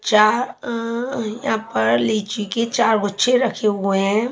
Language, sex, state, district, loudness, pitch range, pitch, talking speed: Hindi, female, Chhattisgarh, Raipur, -19 LUFS, 205-240 Hz, 220 Hz, 125 wpm